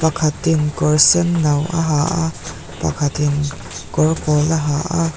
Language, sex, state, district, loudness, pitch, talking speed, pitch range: Mizo, female, Mizoram, Aizawl, -17 LUFS, 155 Hz, 140 wpm, 150-165 Hz